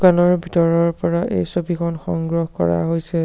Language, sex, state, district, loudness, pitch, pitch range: Assamese, male, Assam, Sonitpur, -19 LUFS, 170 Hz, 165-175 Hz